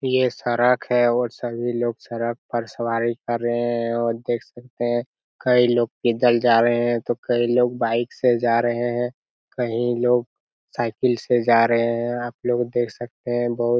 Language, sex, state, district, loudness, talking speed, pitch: Hindi, male, Bihar, Araria, -22 LUFS, 190 wpm, 120 Hz